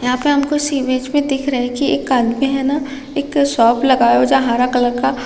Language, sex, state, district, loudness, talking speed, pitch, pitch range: Hindi, female, Chhattisgarh, Raigarh, -16 LUFS, 260 wpm, 270 Hz, 250-280 Hz